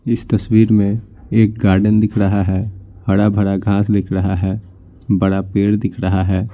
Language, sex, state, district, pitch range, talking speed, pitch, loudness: Hindi, male, Bihar, Patna, 95-105 Hz, 165 wpm, 100 Hz, -16 LUFS